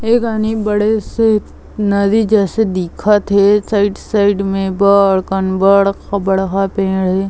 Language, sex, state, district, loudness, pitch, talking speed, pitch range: Chhattisgarhi, female, Chhattisgarh, Bilaspur, -14 LUFS, 200 Hz, 150 wpm, 195-215 Hz